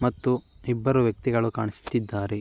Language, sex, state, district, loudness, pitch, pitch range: Kannada, male, Karnataka, Mysore, -26 LUFS, 115 Hz, 105-125 Hz